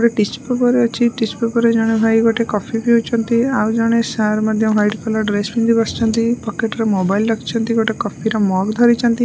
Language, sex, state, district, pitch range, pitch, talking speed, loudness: Odia, female, Odisha, Malkangiri, 215-235 Hz, 225 Hz, 190 wpm, -16 LUFS